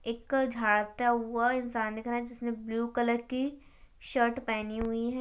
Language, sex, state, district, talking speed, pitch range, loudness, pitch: Hindi, female, Maharashtra, Aurangabad, 175 wpm, 230-245 Hz, -31 LUFS, 235 Hz